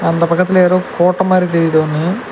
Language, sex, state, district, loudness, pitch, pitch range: Tamil, male, Tamil Nadu, Nilgiris, -13 LUFS, 180 Hz, 165-185 Hz